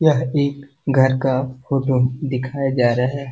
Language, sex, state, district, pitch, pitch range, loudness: Hindi, male, Bihar, Jamui, 130 Hz, 130-140 Hz, -19 LUFS